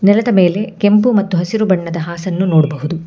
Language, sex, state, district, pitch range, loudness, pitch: Kannada, female, Karnataka, Bangalore, 170-205 Hz, -14 LUFS, 185 Hz